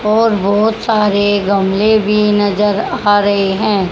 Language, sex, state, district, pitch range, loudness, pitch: Hindi, male, Haryana, Rohtak, 200-215 Hz, -13 LUFS, 205 Hz